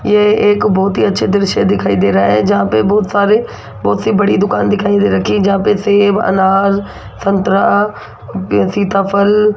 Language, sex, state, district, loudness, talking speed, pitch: Hindi, female, Rajasthan, Jaipur, -12 LUFS, 180 wpm, 200 Hz